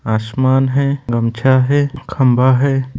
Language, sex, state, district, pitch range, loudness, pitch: Hindi, male, Bihar, Gopalganj, 125-140 Hz, -15 LUFS, 130 Hz